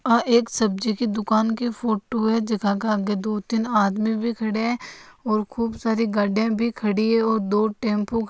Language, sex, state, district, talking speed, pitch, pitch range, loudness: Marwari, female, Rajasthan, Nagaur, 200 wpm, 220 Hz, 215-230 Hz, -22 LUFS